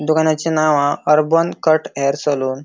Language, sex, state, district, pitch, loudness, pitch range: Konkani, male, Goa, North and South Goa, 150 Hz, -16 LUFS, 145-155 Hz